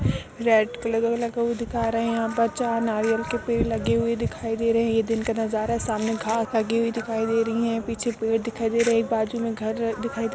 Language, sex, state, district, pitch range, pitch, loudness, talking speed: Hindi, female, Uttar Pradesh, Etah, 225-230 Hz, 230 Hz, -24 LUFS, 255 wpm